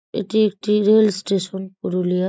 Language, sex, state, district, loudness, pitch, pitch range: Bengali, female, West Bengal, Purulia, -19 LUFS, 200 Hz, 190-215 Hz